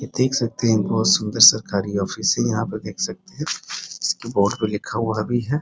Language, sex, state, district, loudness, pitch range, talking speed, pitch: Hindi, male, Bihar, Muzaffarpur, -20 LUFS, 100-120 Hz, 235 wpm, 110 Hz